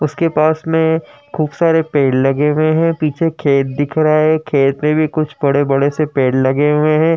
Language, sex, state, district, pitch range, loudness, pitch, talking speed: Hindi, male, Uttar Pradesh, Jyotiba Phule Nagar, 140-160 Hz, -14 LUFS, 155 Hz, 210 wpm